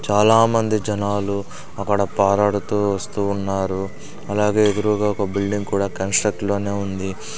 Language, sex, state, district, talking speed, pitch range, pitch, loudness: Telugu, male, Andhra Pradesh, Sri Satya Sai, 115 wpm, 100-105 Hz, 100 Hz, -20 LUFS